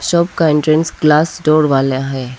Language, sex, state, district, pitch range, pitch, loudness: Hindi, female, Arunachal Pradesh, Lower Dibang Valley, 135-165 Hz, 155 Hz, -14 LUFS